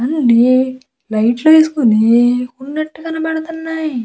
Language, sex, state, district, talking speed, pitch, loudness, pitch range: Telugu, female, Andhra Pradesh, Visakhapatnam, 75 wpm, 265 Hz, -14 LUFS, 240-315 Hz